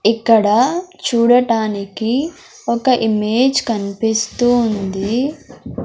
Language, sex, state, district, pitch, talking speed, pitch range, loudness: Telugu, male, Andhra Pradesh, Sri Satya Sai, 230 Hz, 50 wpm, 215-255 Hz, -16 LUFS